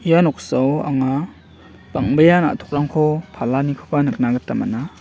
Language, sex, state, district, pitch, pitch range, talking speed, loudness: Garo, male, Meghalaya, West Garo Hills, 145 Hz, 130-155 Hz, 95 wpm, -18 LUFS